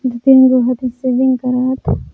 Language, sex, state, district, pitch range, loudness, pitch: Magahi, female, Jharkhand, Palamu, 250-260 Hz, -13 LUFS, 255 Hz